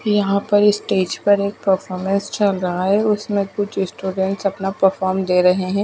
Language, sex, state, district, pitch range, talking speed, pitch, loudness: Hindi, female, Odisha, Khordha, 190-205 Hz, 175 wpm, 195 Hz, -18 LUFS